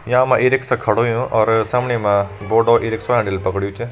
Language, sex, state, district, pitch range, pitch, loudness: Hindi, male, Uttarakhand, Uttarkashi, 105-120 Hz, 115 Hz, -17 LUFS